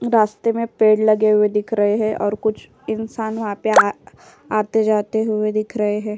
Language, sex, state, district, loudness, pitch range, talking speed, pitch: Hindi, female, Uttar Pradesh, Jyotiba Phule Nagar, -19 LUFS, 210-220 Hz, 175 wpm, 215 Hz